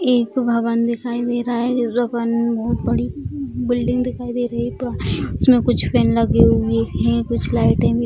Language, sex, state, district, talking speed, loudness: Hindi, female, Bihar, Jamui, 185 wpm, -19 LUFS